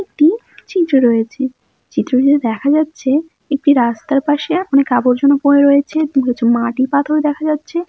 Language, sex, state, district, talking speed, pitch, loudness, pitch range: Bengali, female, West Bengal, Jalpaiguri, 145 wpm, 280 Hz, -15 LUFS, 260-305 Hz